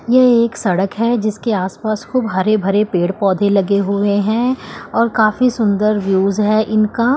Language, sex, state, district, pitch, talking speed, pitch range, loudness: Hindi, female, Chandigarh, Chandigarh, 215 Hz, 175 wpm, 200-230 Hz, -16 LUFS